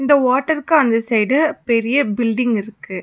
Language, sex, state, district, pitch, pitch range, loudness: Tamil, female, Tamil Nadu, Nilgiris, 245 Hz, 225-285 Hz, -17 LUFS